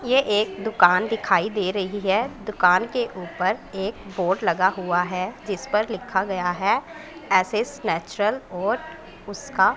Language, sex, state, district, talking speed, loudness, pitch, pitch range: Hindi, female, Punjab, Pathankot, 145 wpm, -23 LUFS, 205 Hz, 185-225 Hz